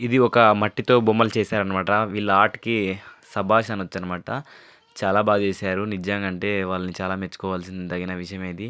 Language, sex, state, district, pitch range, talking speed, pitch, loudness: Telugu, male, Andhra Pradesh, Anantapur, 95-110 Hz, 140 wpm, 100 Hz, -22 LUFS